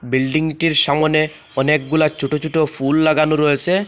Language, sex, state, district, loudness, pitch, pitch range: Bengali, male, Assam, Hailakandi, -17 LUFS, 155 Hz, 145-155 Hz